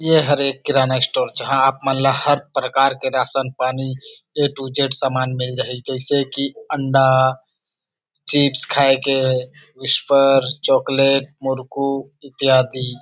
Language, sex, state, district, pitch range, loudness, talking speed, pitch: Chhattisgarhi, male, Chhattisgarh, Rajnandgaon, 130-140 Hz, -18 LUFS, 135 wpm, 135 Hz